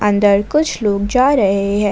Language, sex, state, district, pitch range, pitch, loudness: Hindi, female, Jharkhand, Ranchi, 200-250 Hz, 205 Hz, -15 LUFS